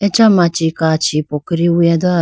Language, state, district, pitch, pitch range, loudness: Idu Mishmi, Arunachal Pradesh, Lower Dibang Valley, 170 Hz, 160-175 Hz, -14 LUFS